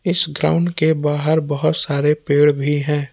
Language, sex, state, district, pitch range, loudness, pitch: Hindi, male, Jharkhand, Palamu, 145-160 Hz, -16 LUFS, 150 Hz